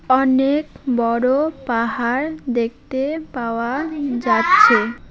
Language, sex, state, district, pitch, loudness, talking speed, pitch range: Bengali, female, West Bengal, Alipurduar, 260 Hz, -18 LUFS, 70 wpm, 240-295 Hz